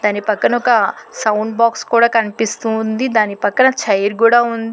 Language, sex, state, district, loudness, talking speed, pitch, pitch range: Telugu, female, Telangana, Hyderabad, -15 LUFS, 150 wpm, 225 Hz, 215-235 Hz